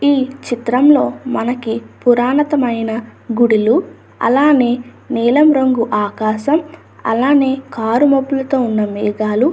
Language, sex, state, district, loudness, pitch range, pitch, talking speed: Telugu, female, Andhra Pradesh, Anantapur, -15 LUFS, 225-275 Hz, 245 Hz, 95 wpm